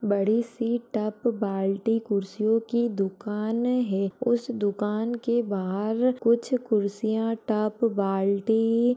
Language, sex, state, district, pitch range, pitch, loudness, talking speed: Hindi, female, Uttar Pradesh, Budaun, 205-235 Hz, 220 Hz, -26 LUFS, 115 wpm